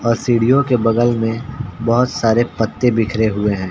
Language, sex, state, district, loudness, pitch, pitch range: Hindi, male, Uttar Pradesh, Ghazipur, -16 LUFS, 115 Hz, 110-125 Hz